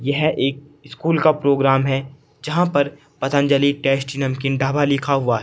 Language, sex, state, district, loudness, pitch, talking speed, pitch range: Hindi, male, Uttar Pradesh, Saharanpur, -19 LUFS, 140 Hz, 165 wpm, 135-145 Hz